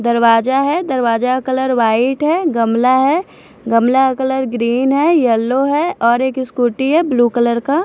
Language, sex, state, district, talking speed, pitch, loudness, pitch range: Hindi, female, Punjab, Fazilka, 175 wpm, 260 Hz, -14 LUFS, 235-275 Hz